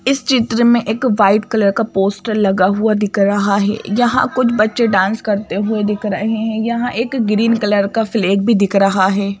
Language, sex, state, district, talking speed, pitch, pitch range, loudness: Hindi, female, Madhya Pradesh, Bhopal, 205 wpm, 215 Hz, 200-230 Hz, -15 LUFS